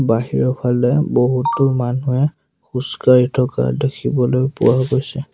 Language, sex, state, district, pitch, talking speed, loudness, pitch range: Assamese, male, Assam, Sonitpur, 130 Hz, 110 wpm, -17 LUFS, 125-135 Hz